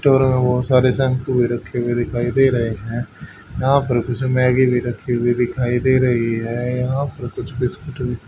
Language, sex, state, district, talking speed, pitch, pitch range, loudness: Hindi, male, Haryana, Charkhi Dadri, 210 wpm, 125 Hz, 120-130 Hz, -19 LUFS